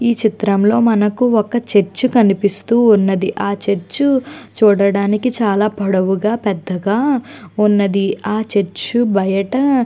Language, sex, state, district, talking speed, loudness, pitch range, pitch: Telugu, female, Andhra Pradesh, Chittoor, 110 wpm, -15 LUFS, 200-235 Hz, 210 Hz